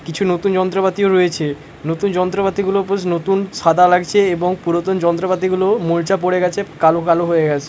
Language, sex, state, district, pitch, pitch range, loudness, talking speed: Bengali, male, West Bengal, Paschim Medinipur, 180 Hz, 170-195 Hz, -16 LUFS, 170 wpm